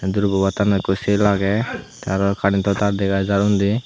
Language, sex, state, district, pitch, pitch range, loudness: Chakma, male, Tripura, Unakoti, 100 Hz, 95-100 Hz, -19 LUFS